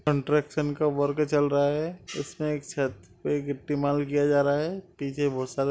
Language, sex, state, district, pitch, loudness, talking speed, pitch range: Hindi, male, Uttar Pradesh, Etah, 145 Hz, -27 LUFS, 210 wpm, 140-150 Hz